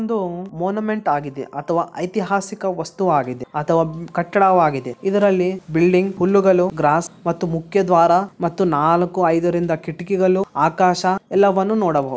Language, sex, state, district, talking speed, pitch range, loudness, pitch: Kannada, male, Karnataka, Bellary, 115 wpm, 165-195 Hz, -18 LUFS, 180 Hz